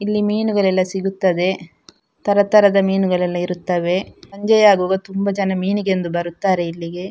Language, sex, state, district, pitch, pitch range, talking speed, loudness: Kannada, female, Karnataka, Dakshina Kannada, 190 Hz, 180-200 Hz, 120 wpm, -18 LUFS